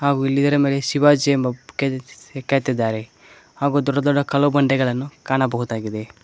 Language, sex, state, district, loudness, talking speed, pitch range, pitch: Kannada, male, Karnataka, Koppal, -20 LUFS, 135 wpm, 125-140 Hz, 135 Hz